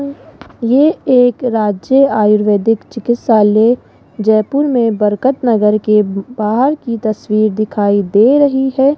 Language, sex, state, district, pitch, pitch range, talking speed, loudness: Hindi, female, Rajasthan, Jaipur, 225 Hz, 210-265 Hz, 115 wpm, -13 LUFS